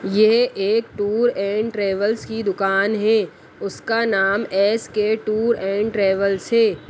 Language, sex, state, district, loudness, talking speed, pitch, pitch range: Hindi, female, Uttar Pradesh, Budaun, -19 LUFS, 130 wpm, 210 Hz, 195-225 Hz